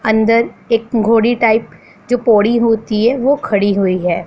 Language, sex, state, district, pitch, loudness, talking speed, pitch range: Hindi, female, Punjab, Pathankot, 225 Hz, -14 LUFS, 170 wpm, 210-235 Hz